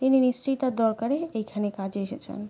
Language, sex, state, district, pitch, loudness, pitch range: Bengali, female, West Bengal, Paschim Medinipur, 235 Hz, -27 LUFS, 210-265 Hz